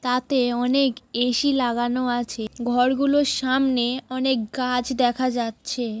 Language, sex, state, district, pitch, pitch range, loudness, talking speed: Bengali, female, West Bengal, Kolkata, 250 Hz, 240-260 Hz, -22 LUFS, 120 wpm